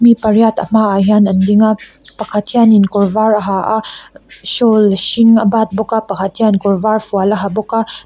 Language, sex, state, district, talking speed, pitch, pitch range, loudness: Mizo, female, Mizoram, Aizawl, 225 wpm, 215 Hz, 200-220 Hz, -12 LUFS